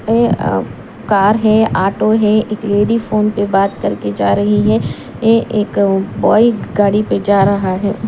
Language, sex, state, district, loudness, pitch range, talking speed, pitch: Hindi, female, Punjab, Pathankot, -14 LUFS, 190-215 Hz, 170 wpm, 205 Hz